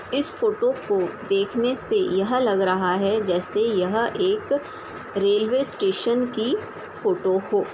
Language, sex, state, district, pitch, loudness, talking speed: Hindi, female, Bihar, Samastipur, 250 Hz, -23 LUFS, 140 wpm